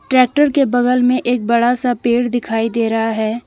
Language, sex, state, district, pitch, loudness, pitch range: Hindi, female, Jharkhand, Deoghar, 245 Hz, -15 LUFS, 230-250 Hz